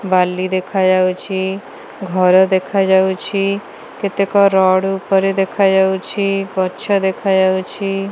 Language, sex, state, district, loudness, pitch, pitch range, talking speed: Odia, female, Odisha, Malkangiri, -16 LUFS, 190 Hz, 185-195 Hz, 75 wpm